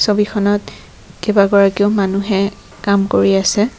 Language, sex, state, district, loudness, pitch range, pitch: Assamese, female, Assam, Kamrup Metropolitan, -15 LUFS, 195-205 Hz, 200 Hz